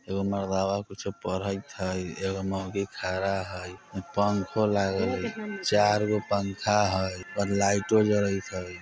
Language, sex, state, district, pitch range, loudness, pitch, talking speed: Bajjika, male, Bihar, Vaishali, 95-100 Hz, -28 LUFS, 100 Hz, 130 wpm